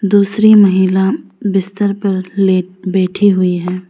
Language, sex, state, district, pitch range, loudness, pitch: Hindi, female, Arunachal Pradesh, Lower Dibang Valley, 185-200 Hz, -13 LUFS, 195 Hz